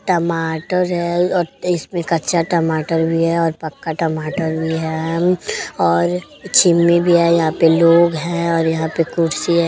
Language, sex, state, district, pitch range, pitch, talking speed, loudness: Bhojpuri, female, Uttar Pradesh, Deoria, 160-170 Hz, 165 Hz, 155 wpm, -17 LUFS